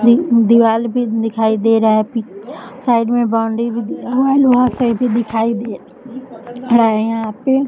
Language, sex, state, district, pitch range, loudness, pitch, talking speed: Hindi, female, Bihar, Jahanabad, 225-250 Hz, -15 LUFS, 235 Hz, 140 wpm